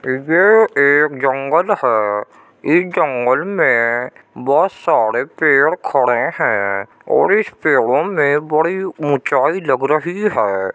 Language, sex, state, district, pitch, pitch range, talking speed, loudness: Hindi, male, Uttar Pradesh, Jyotiba Phule Nagar, 145 Hz, 125-170 Hz, 115 wpm, -15 LUFS